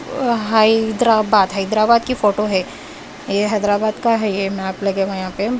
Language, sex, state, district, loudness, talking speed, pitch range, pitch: Hindi, female, Bihar, West Champaran, -17 LUFS, 180 wpm, 195-225 Hz, 210 Hz